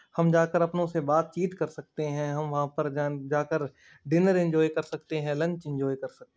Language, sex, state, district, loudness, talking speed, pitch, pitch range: Hindi, male, Rajasthan, Churu, -28 LUFS, 205 wpm, 160 Hz, 145-170 Hz